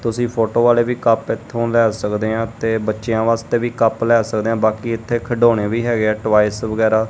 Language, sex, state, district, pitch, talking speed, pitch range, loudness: Punjabi, male, Punjab, Kapurthala, 115 Hz, 210 wpm, 110-115 Hz, -17 LUFS